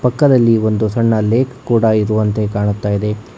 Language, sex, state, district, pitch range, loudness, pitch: Kannada, male, Karnataka, Bangalore, 105-120 Hz, -15 LUFS, 110 Hz